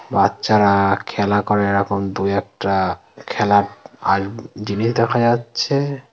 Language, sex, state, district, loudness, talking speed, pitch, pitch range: Bengali, male, West Bengal, North 24 Parganas, -18 LUFS, 110 wpm, 100 Hz, 100-115 Hz